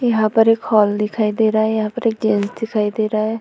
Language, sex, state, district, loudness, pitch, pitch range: Hindi, female, Uttar Pradesh, Budaun, -17 LUFS, 220 Hz, 215-225 Hz